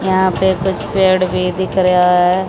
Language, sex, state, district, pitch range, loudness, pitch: Hindi, female, Odisha, Malkangiri, 180-190 Hz, -14 LUFS, 185 Hz